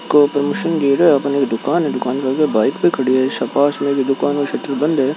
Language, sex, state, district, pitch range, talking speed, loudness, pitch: Hindi, male, Rajasthan, Nagaur, 135-145 Hz, 220 wpm, -16 LUFS, 140 Hz